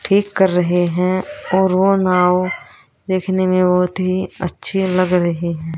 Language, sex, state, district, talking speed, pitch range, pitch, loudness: Hindi, female, Haryana, Rohtak, 155 wpm, 180-190 Hz, 185 Hz, -17 LUFS